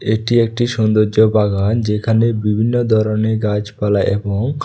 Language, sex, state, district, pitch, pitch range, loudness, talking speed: Bengali, male, Tripura, West Tripura, 110 Hz, 105-115 Hz, -16 LUFS, 115 wpm